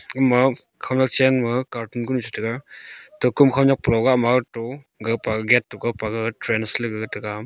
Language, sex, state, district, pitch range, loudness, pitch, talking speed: Wancho, male, Arunachal Pradesh, Longding, 115-130 Hz, -21 LUFS, 120 Hz, 145 wpm